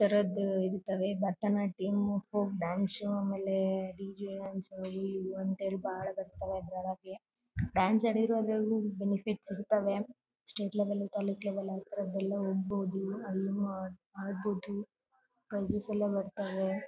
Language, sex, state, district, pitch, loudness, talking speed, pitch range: Kannada, female, Karnataka, Bellary, 200 Hz, -34 LUFS, 115 wpm, 190-205 Hz